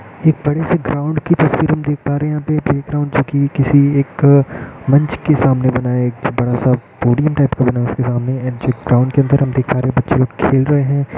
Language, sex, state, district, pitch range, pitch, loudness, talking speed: Hindi, male, Bihar, Gaya, 130-145 Hz, 140 Hz, -15 LUFS, 205 wpm